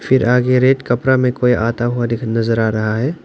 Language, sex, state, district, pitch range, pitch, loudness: Hindi, male, Arunachal Pradesh, Lower Dibang Valley, 115-130 Hz, 120 Hz, -16 LUFS